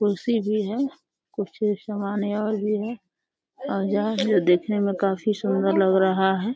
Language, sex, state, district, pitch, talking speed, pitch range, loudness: Hindi, female, Uttar Pradesh, Deoria, 205 Hz, 155 wpm, 195-215 Hz, -24 LUFS